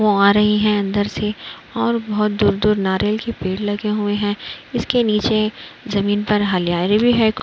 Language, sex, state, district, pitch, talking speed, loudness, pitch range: Hindi, female, Uttar Pradesh, Budaun, 210 Hz, 200 wpm, -18 LUFS, 205-215 Hz